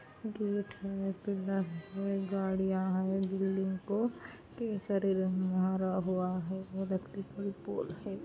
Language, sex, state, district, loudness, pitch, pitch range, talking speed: Hindi, female, Andhra Pradesh, Anantapur, -35 LUFS, 195 Hz, 190-195 Hz, 130 wpm